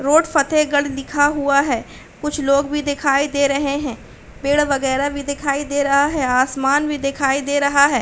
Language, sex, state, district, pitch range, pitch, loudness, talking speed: Hindi, female, Uttar Pradesh, Hamirpur, 275-290 Hz, 285 Hz, -18 LUFS, 185 wpm